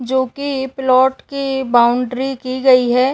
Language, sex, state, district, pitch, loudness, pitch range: Hindi, female, Uttar Pradesh, Gorakhpur, 260 Hz, -16 LUFS, 255-265 Hz